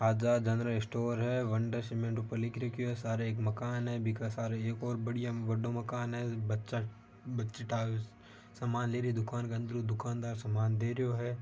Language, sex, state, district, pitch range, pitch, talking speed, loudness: Marwari, male, Rajasthan, Nagaur, 115-120 Hz, 115 Hz, 180 wpm, -35 LUFS